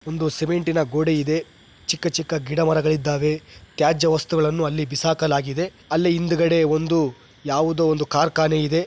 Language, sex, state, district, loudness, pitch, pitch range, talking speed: Kannada, male, Karnataka, Chamarajanagar, -21 LUFS, 160 Hz, 155-165 Hz, 140 wpm